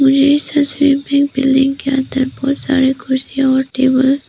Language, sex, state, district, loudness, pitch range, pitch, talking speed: Hindi, female, Arunachal Pradesh, Papum Pare, -14 LUFS, 265-280 Hz, 270 Hz, 180 wpm